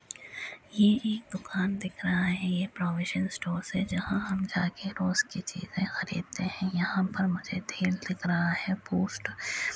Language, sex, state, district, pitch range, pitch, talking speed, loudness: Hindi, female, Uttar Pradesh, Hamirpur, 180-195 Hz, 185 Hz, 195 wpm, -30 LUFS